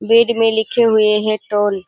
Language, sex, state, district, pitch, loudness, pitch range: Hindi, female, Bihar, Kishanganj, 220 Hz, -15 LUFS, 210-230 Hz